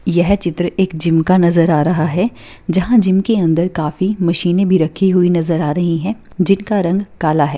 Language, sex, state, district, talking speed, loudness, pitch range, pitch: Hindi, female, Bihar, Begusarai, 205 wpm, -15 LUFS, 165-190 Hz, 175 Hz